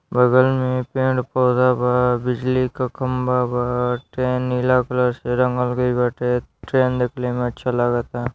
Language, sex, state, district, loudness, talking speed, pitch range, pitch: Bhojpuri, male, Uttar Pradesh, Deoria, -20 LUFS, 160 wpm, 125-130 Hz, 125 Hz